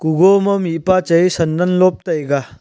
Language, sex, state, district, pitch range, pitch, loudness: Wancho, male, Arunachal Pradesh, Longding, 160-185 Hz, 175 Hz, -15 LUFS